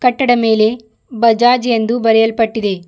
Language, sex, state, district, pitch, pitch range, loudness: Kannada, female, Karnataka, Bidar, 230 Hz, 220-245 Hz, -13 LUFS